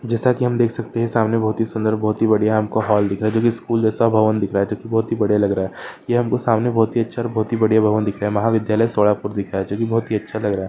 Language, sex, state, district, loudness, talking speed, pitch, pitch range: Hindi, male, Maharashtra, Solapur, -19 LUFS, 330 wpm, 110 Hz, 105-115 Hz